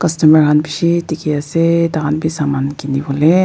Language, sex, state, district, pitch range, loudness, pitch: Nagamese, female, Nagaland, Dimapur, 150-165 Hz, -15 LUFS, 155 Hz